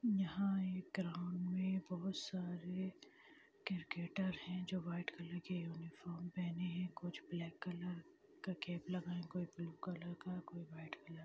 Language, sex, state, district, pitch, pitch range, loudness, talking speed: Hindi, female, Bihar, Gaya, 180 Hz, 170-185 Hz, -45 LUFS, 150 wpm